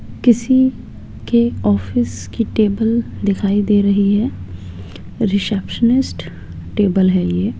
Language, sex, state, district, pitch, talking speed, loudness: Hindi, female, Rajasthan, Jaipur, 200 Hz, 105 wpm, -16 LUFS